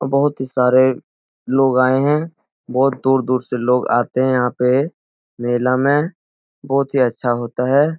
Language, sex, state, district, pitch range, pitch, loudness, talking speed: Hindi, male, Bihar, Jahanabad, 125-140 Hz, 130 Hz, -17 LUFS, 160 wpm